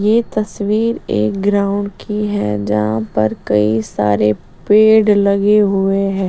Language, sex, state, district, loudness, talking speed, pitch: Hindi, female, Bihar, Patna, -15 LUFS, 145 wpm, 200 Hz